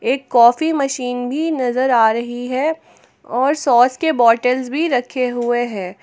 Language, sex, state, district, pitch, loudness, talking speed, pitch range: Hindi, female, Jharkhand, Ranchi, 250 Hz, -17 LUFS, 160 wpm, 240-275 Hz